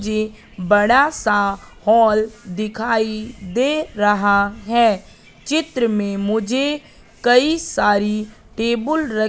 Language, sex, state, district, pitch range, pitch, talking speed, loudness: Hindi, female, Madhya Pradesh, Katni, 205-245 Hz, 220 Hz, 95 wpm, -18 LUFS